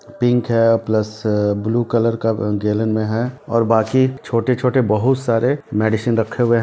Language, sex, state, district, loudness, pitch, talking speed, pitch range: Hindi, male, Bihar, Sitamarhi, -18 LUFS, 115 Hz, 165 wpm, 110-120 Hz